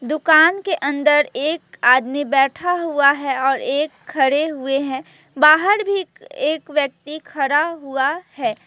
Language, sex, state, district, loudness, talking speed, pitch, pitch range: Hindi, female, West Bengal, Alipurduar, -18 LUFS, 140 wpm, 295 Hz, 275-325 Hz